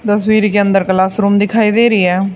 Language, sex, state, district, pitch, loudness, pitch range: Hindi, female, Haryana, Charkhi Dadri, 205 Hz, -12 LUFS, 195-215 Hz